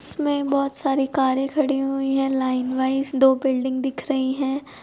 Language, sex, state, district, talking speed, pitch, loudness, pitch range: Hindi, male, Uttar Pradesh, Jyotiba Phule Nagar, 160 wpm, 270 Hz, -22 LUFS, 265-275 Hz